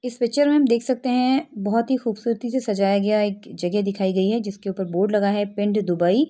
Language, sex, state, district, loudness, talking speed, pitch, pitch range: Hindi, female, Uttar Pradesh, Etah, -22 LUFS, 255 wpm, 210 Hz, 200-250 Hz